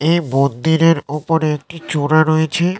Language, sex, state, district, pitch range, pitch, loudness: Bengali, male, West Bengal, North 24 Parganas, 150-165 Hz, 160 Hz, -16 LUFS